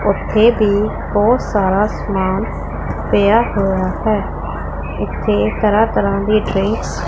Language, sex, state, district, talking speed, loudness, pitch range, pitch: Punjabi, female, Punjab, Pathankot, 120 wpm, -16 LUFS, 190-215 Hz, 200 Hz